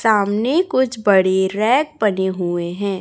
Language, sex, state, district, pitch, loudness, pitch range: Hindi, female, Chhattisgarh, Raipur, 205 Hz, -18 LUFS, 190-235 Hz